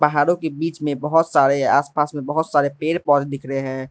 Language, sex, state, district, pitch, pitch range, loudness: Hindi, male, Arunachal Pradesh, Lower Dibang Valley, 145 Hz, 140-160 Hz, -20 LUFS